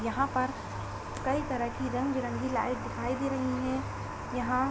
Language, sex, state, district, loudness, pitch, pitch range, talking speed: Hindi, female, Uttar Pradesh, Hamirpur, -32 LUFS, 260 Hz, 255-265 Hz, 165 wpm